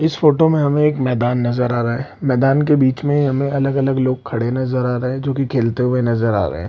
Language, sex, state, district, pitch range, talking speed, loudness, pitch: Hindi, male, Bihar, Lakhisarai, 125-140 Hz, 270 wpm, -17 LUFS, 130 Hz